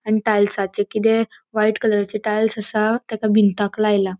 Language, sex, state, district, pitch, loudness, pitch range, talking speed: Konkani, female, Goa, North and South Goa, 215 Hz, -19 LUFS, 205-220 Hz, 145 wpm